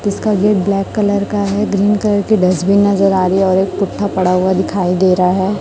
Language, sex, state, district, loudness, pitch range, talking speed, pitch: Hindi, male, Chhattisgarh, Raipur, -14 LUFS, 185-205 Hz, 245 wpm, 195 Hz